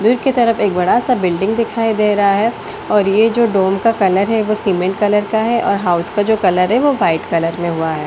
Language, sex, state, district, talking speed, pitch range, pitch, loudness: Hindi, female, Delhi, New Delhi, 260 wpm, 185-225 Hz, 205 Hz, -15 LUFS